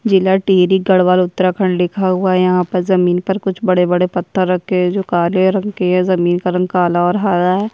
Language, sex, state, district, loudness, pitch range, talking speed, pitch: Hindi, female, Uttarakhand, Tehri Garhwal, -14 LUFS, 180-190 Hz, 215 wpm, 185 Hz